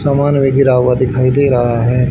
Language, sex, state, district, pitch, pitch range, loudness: Hindi, male, Haryana, Charkhi Dadri, 130 Hz, 125-140 Hz, -12 LUFS